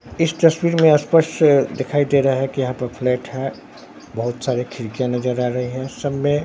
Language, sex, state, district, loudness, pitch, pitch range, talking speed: Hindi, male, Bihar, Katihar, -19 LUFS, 135 Hz, 125-145 Hz, 205 wpm